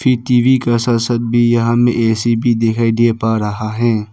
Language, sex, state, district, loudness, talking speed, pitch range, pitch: Hindi, male, Arunachal Pradesh, Papum Pare, -14 LUFS, 190 wpm, 115-120 Hz, 115 Hz